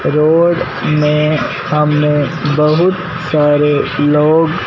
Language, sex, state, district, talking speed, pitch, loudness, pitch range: Hindi, male, Punjab, Fazilka, 75 wpm, 150 Hz, -13 LUFS, 150-160 Hz